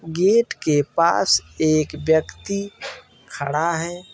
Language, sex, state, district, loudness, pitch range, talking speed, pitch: Hindi, male, Uttar Pradesh, Varanasi, -20 LUFS, 150-190 Hz, 100 wpm, 160 Hz